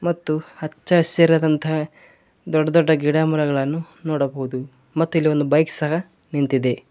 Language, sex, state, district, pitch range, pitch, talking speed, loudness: Kannada, male, Karnataka, Koppal, 145-165 Hz, 155 Hz, 115 wpm, -20 LUFS